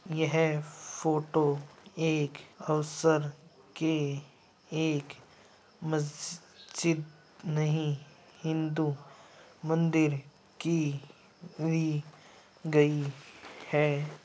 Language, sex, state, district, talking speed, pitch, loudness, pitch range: Hindi, male, Uttar Pradesh, Muzaffarnagar, 65 wpm, 155 Hz, -31 LUFS, 150-160 Hz